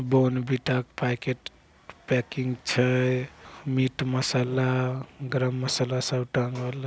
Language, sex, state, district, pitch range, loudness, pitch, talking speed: Angika, male, Bihar, Begusarai, 125-130 Hz, -27 LUFS, 130 Hz, 105 wpm